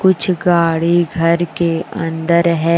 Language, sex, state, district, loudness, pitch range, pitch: Hindi, female, Jharkhand, Deoghar, -15 LUFS, 165-175 Hz, 170 Hz